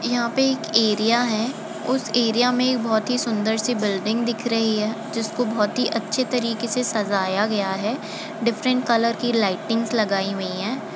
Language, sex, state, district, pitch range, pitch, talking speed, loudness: Hindi, female, Uttar Pradesh, Jalaun, 215-240 Hz, 225 Hz, 175 wpm, -22 LUFS